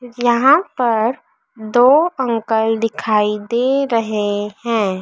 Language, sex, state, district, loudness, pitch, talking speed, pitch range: Hindi, female, Madhya Pradesh, Dhar, -16 LUFS, 230 Hz, 95 wpm, 215-255 Hz